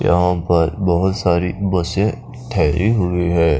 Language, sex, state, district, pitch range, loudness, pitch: Hindi, male, Chandigarh, Chandigarh, 85-100 Hz, -17 LUFS, 90 Hz